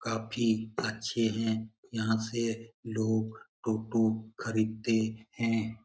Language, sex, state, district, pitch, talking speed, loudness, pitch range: Hindi, male, Bihar, Lakhisarai, 110 Hz, 90 wpm, -32 LUFS, 110-115 Hz